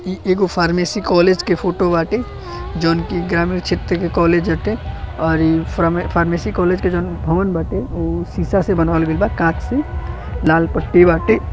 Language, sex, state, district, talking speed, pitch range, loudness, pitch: Bhojpuri, male, Uttar Pradesh, Deoria, 170 wpm, 165-185 Hz, -17 LUFS, 175 Hz